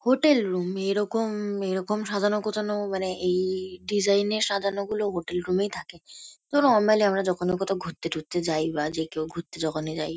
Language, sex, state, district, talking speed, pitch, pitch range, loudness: Bengali, female, West Bengal, Kolkata, 175 wpm, 195 Hz, 180-210 Hz, -26 LUFS